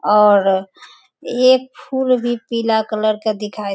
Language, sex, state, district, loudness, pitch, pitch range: Hindi, female, Bihar, Sitamarhi, -17 LUFS, 220 Hz, 210-250 Hz